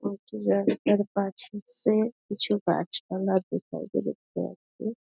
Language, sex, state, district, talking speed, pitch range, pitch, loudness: Bengali, female, West Bengal, Dakshin Dinajpur, 145 wpm, 175-215 Hz, 200 Hz, -28 LUFS